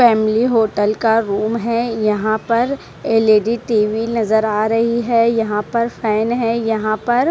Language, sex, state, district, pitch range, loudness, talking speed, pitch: Hindi, female, Punjab, Kapurthala, 215-235 Hz, -17 LUFS, 155 wpm, 225 Hz